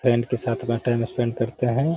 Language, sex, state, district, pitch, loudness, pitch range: Hindi, male, Bihar, Gaya, 120 Hz, -24 LUFS, 115-125 Hz